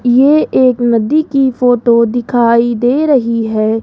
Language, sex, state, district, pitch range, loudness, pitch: Hindi, female, Rajasthan, Jaipur, 235-265 Hz, -11 LUFS, 245 Hz